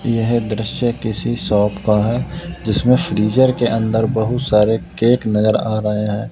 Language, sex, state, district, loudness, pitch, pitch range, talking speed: Hindi, male, Uttar Pradesh, Lalitpur, -17 LUFS, 110 Hz, 105-120 Hz, 160 wpm